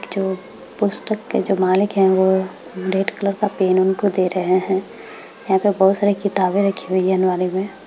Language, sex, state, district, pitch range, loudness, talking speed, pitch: Hindi, female, Bihar, Madhepura, 185-200 Hz, -19 LUFS, 190 wpm, 190 Hz